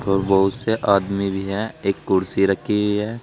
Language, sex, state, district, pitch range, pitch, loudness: Hindi, male, Uttar Pradesh, Saharanpur, 95-105 Hz, 100 Hz, -20 LUFS